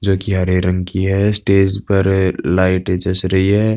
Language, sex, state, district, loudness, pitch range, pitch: Hindi, male, Uttar Pradesh, Budaun, -15 LUFS, 95-100 Hz, 95 Hz